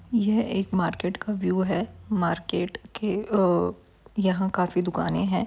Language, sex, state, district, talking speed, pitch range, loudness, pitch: Hindi, female, Bihar, Saran, 140 wpm, 180-210 Hz, -26 LUFS, 190 Hz